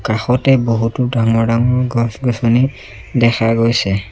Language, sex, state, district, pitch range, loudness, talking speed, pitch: Assamese, male, Assam, Sonitpur, 115-125 Hz, -15 LUFS, 115 wpm, 115 Hz